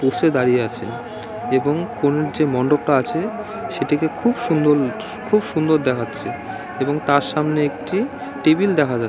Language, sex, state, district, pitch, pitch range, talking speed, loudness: Bengali, male, West Bengal, Dakshin Dinajpur, 150 Hz, 130-165 Hz, 140 wpm, -20 LUFS